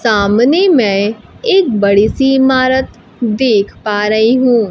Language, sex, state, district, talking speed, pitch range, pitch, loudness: Hindi, female, Bihar, Kaimur, 115 wpm, 210-260 Hz, 235 Hz, -12 LUFS